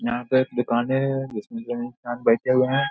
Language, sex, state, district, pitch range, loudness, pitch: Hindi, male, Bihar, Saharsa, 120-130 Hz, -23 LUFS, 120 Hz